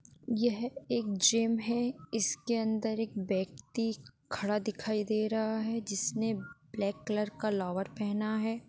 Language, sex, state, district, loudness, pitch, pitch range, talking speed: Hindi, female, Bihar, Saran, -33 LUFS, 220 Hz, 205-225 Hz, 145 wpm